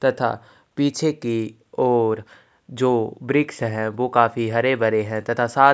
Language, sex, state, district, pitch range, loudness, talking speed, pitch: Hindi, male, Chhattisgarh, Kabirdham, 110-130 Hz, -21 LUFS, 145 wpm, 120 Hz